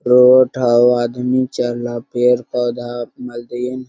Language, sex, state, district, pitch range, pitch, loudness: Hindi, male, Jharkhand, Sahebganj, 120-125 Hz, 125 Hz, -16 LUFS